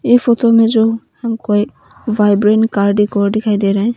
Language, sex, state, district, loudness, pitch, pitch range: Hindi, female, Arunachal Pradesh, Papum Pare, -14 LUFS, 220 Hz, 205-230 Hz